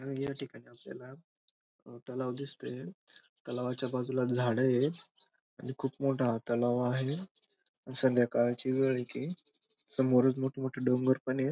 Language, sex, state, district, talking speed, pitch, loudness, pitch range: Marathi, male, Maharashtra, Dhule, 120 wpm, 130 Hz, -32 LUFS, 125-135 Hz